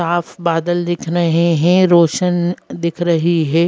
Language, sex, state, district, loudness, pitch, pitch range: Hindi, female, Madhya Pradesh, Bhopal, -15 LUFS, 170 Hz, 170-175 Hz